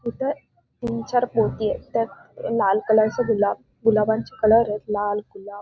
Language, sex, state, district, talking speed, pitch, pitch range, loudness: Marathi, female, Maharashtra, Dhule, 150 wpm, 220 Hz, 210-235 Hz, -22 LUFS